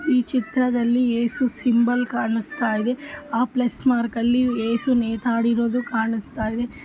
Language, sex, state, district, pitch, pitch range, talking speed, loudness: Kannada, female, Karnataka, Bellary, 240 Hz, 230-250 Hz, 125 wpm, -22 LUFS